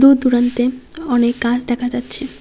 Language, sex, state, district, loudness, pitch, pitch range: Bengali, female, West Bengal, Cooch Behar, -17 LUFS, 245 Hz, 245-260 Hz